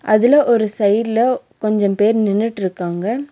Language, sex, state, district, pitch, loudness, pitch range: Tamil, female, Tamil Nadu, Nilgiris, 215 Hz, -16 LUFS, 205-230 Hz